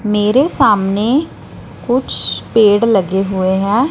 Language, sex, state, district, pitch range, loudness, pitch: Hindi, female, Punjab, Fazilka, 195-255 Hz, -14 LUFS, 210 Hz